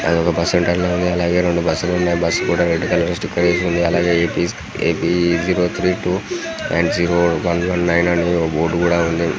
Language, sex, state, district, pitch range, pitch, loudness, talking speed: Telugu, male, Andhra Pradesh, Guntur, 85-90 Hz, 85 Hz, -17 LUFS, 200 wpm